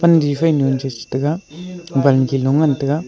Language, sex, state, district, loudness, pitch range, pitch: Wancho, male, Arunachal Pradesh, Longding, -17 LUFS, 135-165 Hz, 145 Hz